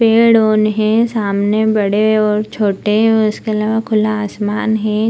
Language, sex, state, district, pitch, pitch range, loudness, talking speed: Hindi, female, Bihar, Purnia, 215 Hz, 210-220 Hz, -14 LUFS, 155 wpm